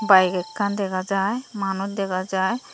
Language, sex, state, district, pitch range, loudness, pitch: Chakma, female, Tripura, Dhalai, 190-205 Hz, -23 LUFS, 195 Hz